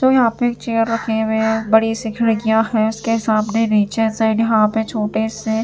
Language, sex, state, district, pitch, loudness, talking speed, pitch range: Hindi, female, Bihar, Katihar, 220 Hz, -17 LUFS, 215 wpm, 220-225 Hz